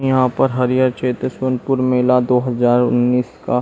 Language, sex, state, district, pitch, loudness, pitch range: Hindi, male, Bihar, Saran, 125 Hz, -17 LUFS, 125-130 Hz